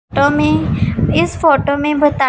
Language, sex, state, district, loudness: Hindi, female, Punjab, Pathankot, -14 LUFS